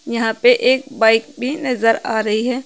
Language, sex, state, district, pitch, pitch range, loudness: Hindi, female, Uttar Pradesh, Saharanpur, 240 Hz, 225-255 Hz, -16 LUFS